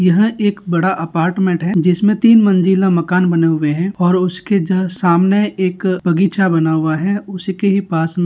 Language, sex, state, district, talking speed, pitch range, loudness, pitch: Hindi, male, Rajasthan, Nagaur, 180 wpm, 175-195 Hz, -15 LUFS, 185 Hz